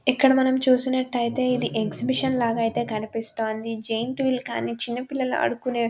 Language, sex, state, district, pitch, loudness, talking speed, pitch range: Telugu, female, Telangana, Nalgonda, 245 Hz, -24 LUFS, 150 wpm, 230-260 Hz